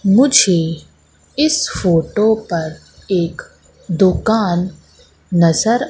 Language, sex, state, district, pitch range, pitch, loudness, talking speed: Hindi, female, Madhya Pradesh, Katni, 170-220 Hz, 190 Hz, -15 LUFS, 70 wpm